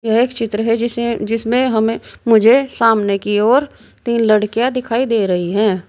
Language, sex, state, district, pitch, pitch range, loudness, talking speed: Hindi, female, Uttar Pradesh, Saharanpur, 230 Hz, 215-240 Hz, -15 LUFS, 175 wpm